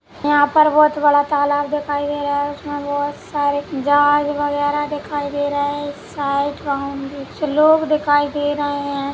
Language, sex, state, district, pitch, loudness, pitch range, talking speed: Hindi, female, Chhattisgarh, Sukma, 290 Hz, -18 LUFS, 285-295 Hz, 170 wpm